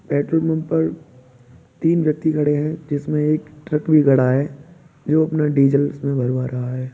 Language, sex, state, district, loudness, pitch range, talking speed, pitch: Hindi, male, Uttar Pradesh, Budaun, -19 LUFS, 135-155 Hz, 175 wpm, 150 Hz